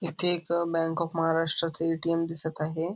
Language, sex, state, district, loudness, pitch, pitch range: Marathi, male, Maharashtra, Aurangabad, -28 LUFS, 165 Hz, 165-170 Hz